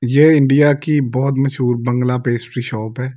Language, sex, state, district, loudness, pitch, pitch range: Hindi, male, Delhi, New Delhi, -16 LUFS, 130 Hz, 120-140 Hz